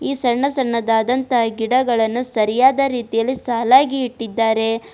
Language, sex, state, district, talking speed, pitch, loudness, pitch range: Kannada, female, Karnataka, Bidar, 85 wpm, 245 Hz, -17 LUFS, 225-260 Hz